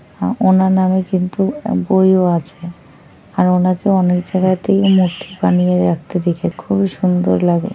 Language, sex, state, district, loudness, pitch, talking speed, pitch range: Bengali, female, West Bengal, North 24 Parganas, -15 LUFS, 180 Hz, 130 wpm, 170-190 Hz